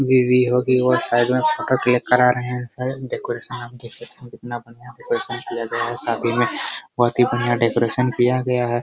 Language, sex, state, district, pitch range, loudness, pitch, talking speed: Hindi, male, Bihar, Araria, 120-125 Hz, -20 LUFS, 125 Hz, 175 wpm